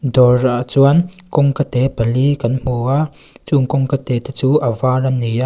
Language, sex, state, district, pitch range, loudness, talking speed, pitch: Mizo, female, Mizoram, Aizawl, 125-140 Hz, -16 LUFS, 200 wpm, 130 Hz